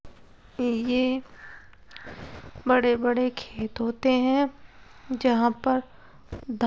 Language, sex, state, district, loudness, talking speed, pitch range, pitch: Hindi, male, Uttar Pradesh, Etah, -25 LUFS, 90 wpm, 240-260 Hz, 250 Hz